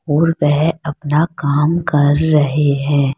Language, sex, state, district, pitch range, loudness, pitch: Hindi, female, Uttar Pradesh, Saharanpur, 145-155 Hz, -15 LUFS, 150 Hz